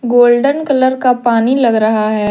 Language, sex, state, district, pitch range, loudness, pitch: Hindi, female, Jharkhand, Deoghar, 225-260 Hz, -12 LUFS, 245 Hz